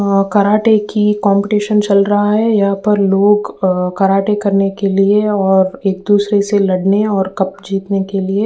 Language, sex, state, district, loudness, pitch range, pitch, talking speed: Hindi, female, Uttar Pradesh, Ghazipur, -13 LUFS, 195-210 Hz, 200 Hz, 185 wpm